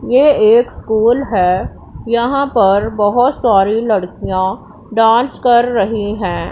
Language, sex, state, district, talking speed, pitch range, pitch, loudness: Hindi, female, Punjab, Pathankot, 120 wpm, 205-245 Hz, 225 Hz, -13 LUFS